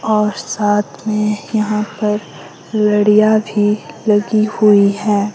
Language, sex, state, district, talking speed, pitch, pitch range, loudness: Hindi, female, Himachal Pradesh, Shimla, 110 wpm, 210 Hz, 205-215 Hz, -15 LUFS